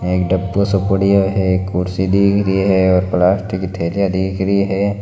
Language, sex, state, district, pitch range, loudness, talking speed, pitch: Marwari, male, Rajasthan, Nagaur, 95-100 Hz, -16 LUFS, 190 wpm, 95 Hz